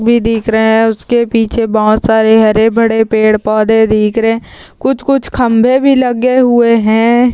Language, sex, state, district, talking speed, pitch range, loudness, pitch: Hindi, female, Bihar, Purnia, 195 wpm, 220-240 Hz, -10 LUFS, 225 Hz